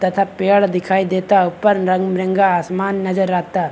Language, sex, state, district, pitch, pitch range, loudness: Hindi, male, Bihar, Begusarai, 190 Hz, 185-195 Hz, -16 LUFS